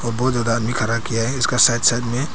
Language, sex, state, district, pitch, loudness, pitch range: Hindi, male, Arunachal Pradesh, Papum Pare, 120 Hz, -18 LUFS, 115-125 Hz